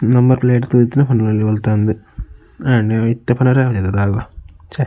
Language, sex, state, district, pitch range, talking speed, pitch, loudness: Tulu, male, Karnataka, Dakshina Kannada, 105-125 Hz, 135 wpm, 115 Hz, -15 LUFS